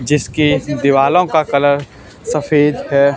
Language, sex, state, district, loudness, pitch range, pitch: Hindi, male, Haryana, Charkhi Dadri, -14 LUFS, 140-150 Hz, 140 Hz